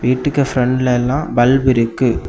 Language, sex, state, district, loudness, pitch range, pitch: Tamil, male, Tamil Nadu, Kanyakumari, -15 LUFS, 120-135 Hz, 125 Hz